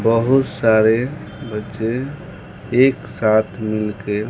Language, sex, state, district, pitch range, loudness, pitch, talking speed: Hindi, male, Bihar, West Champaran, 105-130 Hz, -18 LUFS, 110 Hz, 85 wpm